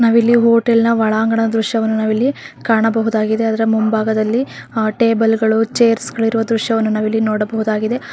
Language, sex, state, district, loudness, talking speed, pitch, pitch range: Kannada, female, Karnataka, Raichur, -15 LUFS, 110 wpm, 225 Hz, 220-230 Hz